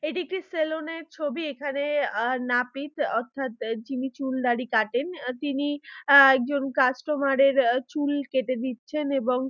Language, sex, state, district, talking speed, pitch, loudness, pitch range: Bengali, female, West Bengal, Dakshin Dinajpur, 140 wpm, 275 Hz, -25 LUFS, 255-295 Hz